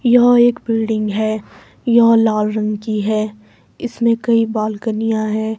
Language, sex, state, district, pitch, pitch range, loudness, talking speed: Hindi, female, Himachal Pradesh, Shimla, 220 Hz, 215-230 Hz, -16 LUFS, 140 wpm